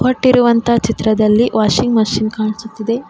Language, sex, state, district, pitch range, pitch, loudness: Kannada, female, Karnataka, Koppal, 215-235 Hz, 225 Hz, -14 LUFS